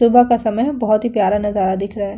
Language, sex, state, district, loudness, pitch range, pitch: Hindi, female, Uttar Pradesh, Hamirpur, -16 LUFS, 200-235 Hz, 215 Hz